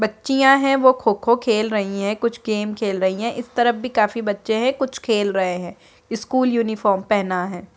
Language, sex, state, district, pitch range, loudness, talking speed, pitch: Hindi, female, Bihar, Muzaffarpur, 205-245 Hz, -20 LUFS, 200 wpm, 220 Hz